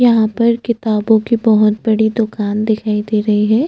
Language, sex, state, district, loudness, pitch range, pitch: Hindi, female, Chhattisgarh, Jashpur, -15 LUFS, 215-230 Hz, 220 Hz